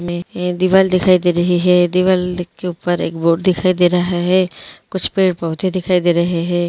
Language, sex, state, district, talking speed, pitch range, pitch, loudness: Hindi, female, Andhra Pradesh, Guntur, 215 wpm, 175-185 Hz, 180 Hz, -16 LUFS